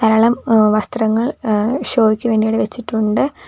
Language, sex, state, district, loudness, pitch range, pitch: Malayalam, female, Kerala, Kollam, -16 LUFS, 215-240 Hz, 220 Hz